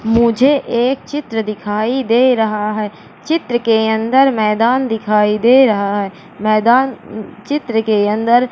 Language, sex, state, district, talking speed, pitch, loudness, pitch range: Hindi, female, Madhya Pradesh, Katni, 135 wpm, 225 Hz, -14 LUFS, 215-250 Hz